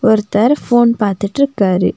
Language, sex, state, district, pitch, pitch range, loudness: Tamil, female, Tamil Nadu, Nilgiris, 220 Hz, 205-240 Hz, -14 LUFS